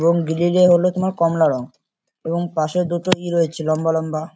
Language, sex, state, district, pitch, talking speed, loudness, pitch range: Bengali, male, West Bengal, Kolkata, 170 Hz, 190 wpm, -19 LUFS, 160-175 Hz